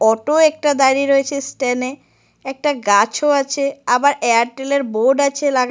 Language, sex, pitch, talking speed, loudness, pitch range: Bengali, female, 275 Hz, 170 wpm, -16 LUFS, 250-285 Hz